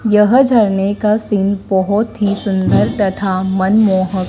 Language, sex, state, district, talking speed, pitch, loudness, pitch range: Hindi, female, Madhya Pradesh, Dhar, 125 wpm, 200 Hz, -14 LUFS, 190-210 Hz